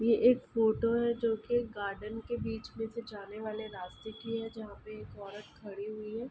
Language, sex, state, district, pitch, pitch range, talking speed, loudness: Hindi, female, Uttar Pradesh, Ghazipur, 220 Hz, 210-230 Hz, 210 wpm, -34 LUFS